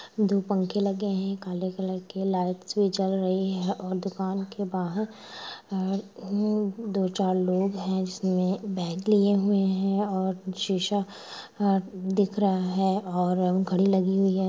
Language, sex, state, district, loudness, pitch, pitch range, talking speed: Hindi, female, Chhattisgarh, Rajnandgaon, -27 LUFS, 190 Hz, 185-200 Hz, 155 wpm